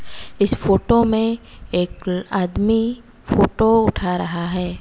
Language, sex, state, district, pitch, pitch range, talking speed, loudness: Hindi, female, Odisha, Malkangiri, 200 Hz, 180-225 Hz, 110 wpm, -18 LUFS